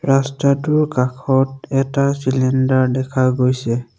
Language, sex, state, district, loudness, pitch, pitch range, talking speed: Assamese, male, Assam, Sonitpur, -17 LUFS, 130 Hz, 130-140 Hz, 90 wpm